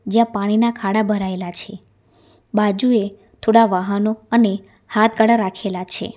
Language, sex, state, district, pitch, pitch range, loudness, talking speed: Gujarati, female, Gujarat, Valsad, 210 Hz, 190-225 Hz, -18 LUFS, 115 wpm